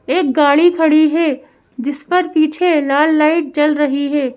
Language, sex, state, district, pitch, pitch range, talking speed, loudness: Hindi, female, Madhya Pradesh, Bhopal, 300 Hz, 285-320 Hz, 165 wpm, -14 LUFS